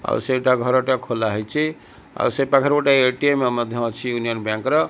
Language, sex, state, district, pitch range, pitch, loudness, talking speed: Odia, male, Odisha, Malkangiri, 115-135 Hz, 125 Hz, -20 LUFS, 170 wpm